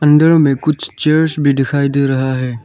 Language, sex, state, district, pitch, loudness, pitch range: Hindi, male, Arunachal Pradesh, Lower Dibang Valley, 140 Hz, -13 LUFS, 135-155 Hz